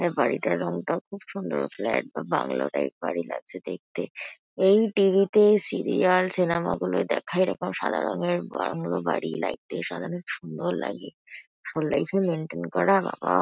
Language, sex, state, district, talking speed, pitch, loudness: Bengali, female, West Bengal, Kolkata, 150 wpm, 170 Hz, -26 LUFS